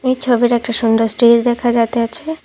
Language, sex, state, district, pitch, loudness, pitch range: Bengali, female, Assam, Kamrup Metropolitan, 240 Hz, -14 LUFS, 230-245 Hz